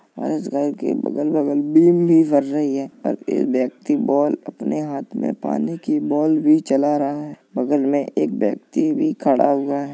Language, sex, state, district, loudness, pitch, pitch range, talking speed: Hindi, male, Uttar Pradesh, Jalaun, -19 LUFS, 145 Hz, 140-160 Hz, 195 wpm